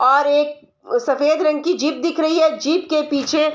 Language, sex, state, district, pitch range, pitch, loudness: Hindi, female, Bihar, Saharsa, 290-315 Hz, 305 Hz, -18 LUFS